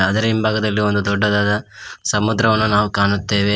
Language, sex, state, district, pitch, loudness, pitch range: Kannada, male, Karnataka, Koppal, 105 Hz, -17 LUFS, 100-110 Hz